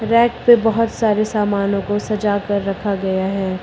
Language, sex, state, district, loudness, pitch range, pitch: Hindi, female, Uttar Pradesh, Lucknow, -17 LUFS, 200-220 Hz, 205 Hz